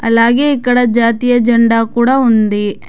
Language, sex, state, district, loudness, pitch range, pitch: Telugu, female, Telangana, Hyderabad, -11 LUFS, 230-245 Hz, 235 Hz